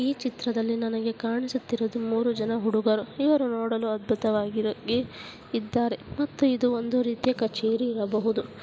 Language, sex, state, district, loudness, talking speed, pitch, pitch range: Kannada, female, Karnataka, Bellary, -27 LUFS, 110 wpm, 230 Hz, 225-245 Hz